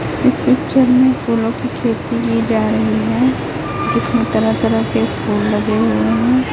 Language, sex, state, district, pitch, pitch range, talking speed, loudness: Hindi, female, Chhattisgarh, Raipur, 110 Hz, 110-125 Hz, 155 wpm, -16 LUFS